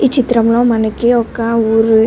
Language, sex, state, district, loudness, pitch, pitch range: Telugu, male, Andhra Pradesh, Guntur, -13 LUFS, 230 Hz, 225-240 Hz